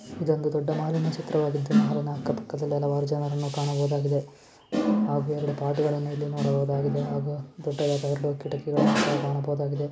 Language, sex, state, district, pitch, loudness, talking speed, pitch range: Kannada, female, Karnataka, Shimoga, 145 Hz, -27 LUFS, 120 wpm, 140-150 Hz